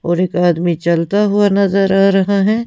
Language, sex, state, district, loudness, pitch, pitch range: Hindi, female, Punjab, Pathankot, -14 LUFS, 195 Hz, 175-200 Hz